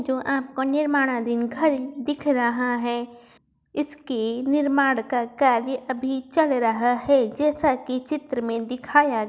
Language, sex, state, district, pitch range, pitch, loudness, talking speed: Hindi, female, Uttar Pradesh, Varanasi, 240-285 Hz, 260 Hz, -23 LUFS, 140 wpm